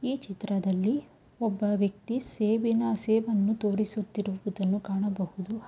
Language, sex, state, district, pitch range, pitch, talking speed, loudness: Kannada, female, Karnataka, Mysore, 200-225 Hz, 210 Hz, 85 wpm, -29 LUFS